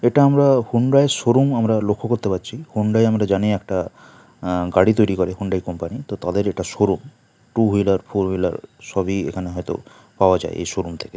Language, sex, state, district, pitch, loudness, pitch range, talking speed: Bengali, male, West Bengal, Kolkata, 105 Hz, -20 LUFS, 95-120 Hz, 190 wpm